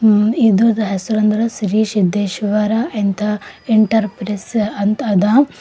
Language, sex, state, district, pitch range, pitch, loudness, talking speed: Kannada, female, Karnataka, Bidar, 205-220 Hz, 215 Hz, -16 LUFS, 105 wpm